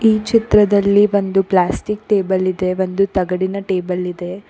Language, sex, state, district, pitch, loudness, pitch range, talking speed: Kannada, female, Karnataka, Koppal, 190 Hz, -16 LUFS, 185-205 Hz, 135 wpm